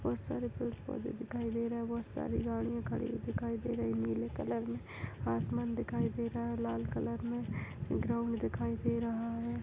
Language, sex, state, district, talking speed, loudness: Hindi, female, Chhattisgarh, Balrampur, 210 wpm, -37 LUFS